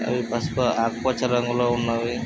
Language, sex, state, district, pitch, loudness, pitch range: Telugu, male, Andhra Pradesh, Krishna, 120 Hz, -23 LUFS, 115-125 Hz